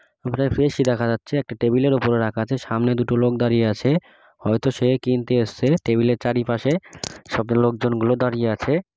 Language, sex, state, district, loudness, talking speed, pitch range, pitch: Bengali, male, West Bengal, Kolkata, -21 LUFS, 180 wpm, 115-130 Hz, 120 Hz